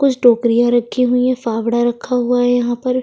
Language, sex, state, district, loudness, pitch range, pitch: Hindi, female, Chhattisgarh, Sukma, -15 LUFS, 240-250 Hz, 245 Hz